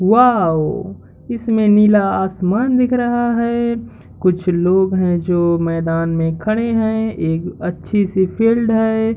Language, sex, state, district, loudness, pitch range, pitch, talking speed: Hindi, male, Uttar Pradesh, Hamirpur, -16 LUFS, 175-230 Hz, 205 Hz, 130 wpm